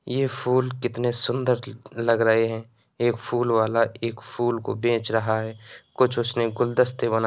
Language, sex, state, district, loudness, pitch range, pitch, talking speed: Hindi, male, Uttar Pradesh, Etah, -24 LUFS, 115-125 Hz, 115 Hz, 175 wpm